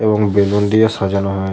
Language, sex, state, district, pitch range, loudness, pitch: Bengali, male, West Bengal, Malda, 100-105 Hz, -15 LUFS, 100 Hz